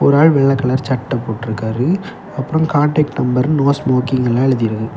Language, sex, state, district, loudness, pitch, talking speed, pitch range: Tamil, male, Tamil Nadu, Kanyakumari, -16 LUFS, 130 Hz, 180 wpm, 125-150 Hz